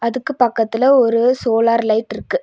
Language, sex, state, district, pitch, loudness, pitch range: Tamil, female, Tamil Nadu, Nilgiris, 230 Hz, -16 LUFS, 230-255 Hz